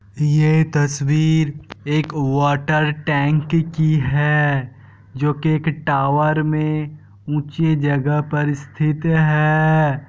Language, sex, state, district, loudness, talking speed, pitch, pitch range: Hindi, male, Bihar, Kishanganj, -18 LUFS, 100 wpm, 150 Hz, 145-155 Hz